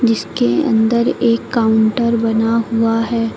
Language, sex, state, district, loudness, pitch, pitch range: Hindi, female, Uttar Pradesh, Lucknow, -15 LUFS, 225 Hz, 225-230 Hz